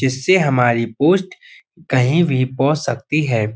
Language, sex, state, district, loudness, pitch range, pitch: Hindi, male, Uttar Pradesh, Budaun, -17 LUFS, 125-170 Hz, 135 Hz